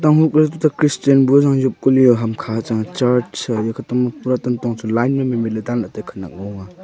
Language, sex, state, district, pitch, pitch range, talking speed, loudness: Wancho, male, Arunachal Pradesh, Longding, 125 Hz, 115-135 Hz, 210 wpm, -17 LUFS